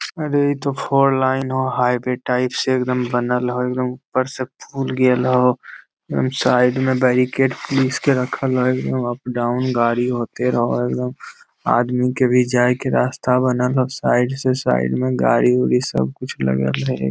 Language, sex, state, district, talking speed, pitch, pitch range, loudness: Magahi, male, Bihar, Lakhisarai, 170 wpm, 125 Hz, 120-130 Hz, -19 LUFS